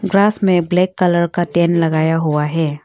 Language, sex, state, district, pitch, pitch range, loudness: Hindi, female, Arunachal Pradesh, Longding, 170 Hz, 160-185 Hz, -15 LUFS